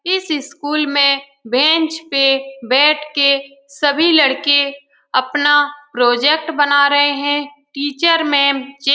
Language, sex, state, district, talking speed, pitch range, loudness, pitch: Hindi, female, Bihar, Lakhisarai, 120 wpm, 275-295 Hz, -15 LUFS, 285 Hz